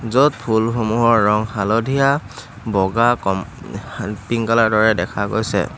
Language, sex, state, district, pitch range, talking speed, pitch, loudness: Assamese, male, Assam, Hailakandi, 105-115 Hz, 125 wpm, 110 Hz, -18 LUFS